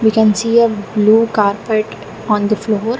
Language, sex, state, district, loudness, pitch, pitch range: English, female, Karnataka, Bangalore, -14 LUFS, 215 Hz, 210-225 Hz